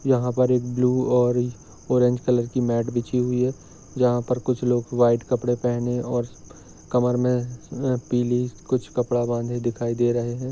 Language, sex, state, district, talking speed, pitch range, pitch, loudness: Hindi, male, Maharashtra, Sindhudurg, 170 wpm, 120-125 Hz, 125 Hz, -23 LUFS